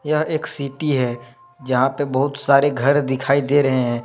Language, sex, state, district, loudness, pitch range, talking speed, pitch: Hindi, male, Jharkhand, Deoghar, -19 LUFS, 130-145 Hz, 195 wpm, 140 Hz